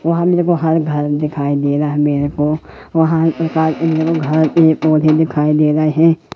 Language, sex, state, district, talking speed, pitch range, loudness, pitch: Hindi, male, Madhya Pradesh, Katni, 160 wpm, 150-165 Hz, -15 LUFS, 155 Hz